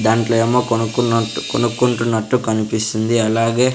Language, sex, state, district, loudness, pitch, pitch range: Telugu, male, Andhra Pradesh, Sri Satya Sai, -17 LUFS, 115 Hz, 110-120 Hz